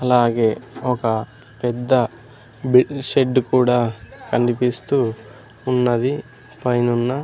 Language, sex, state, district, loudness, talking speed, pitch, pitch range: Telugu, male, Andhra Pradesh, Sri Satya Sai, -19 LUFS, 75 wpm, 125 Hz, 120-125 Hz